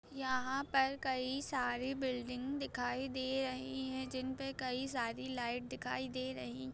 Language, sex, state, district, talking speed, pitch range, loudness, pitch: Hindi, female, Jharkhand, Sahebganj, 160 wpm, 245-265 Hz, -39 LUFS, 260 Hz